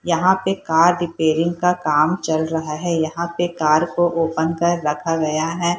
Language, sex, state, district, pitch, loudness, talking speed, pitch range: Hindi, female, Bihar, Saharsa, 165 Hz, -19 LUFS, 185 wpm, 160-175 Hz